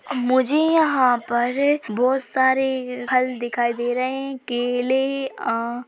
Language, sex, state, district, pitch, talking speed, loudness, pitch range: Hindi, female, Chhattisgarh, Bilaspur, 255 Hz, 120 wpm, -21 LUFS, 245-265 Hz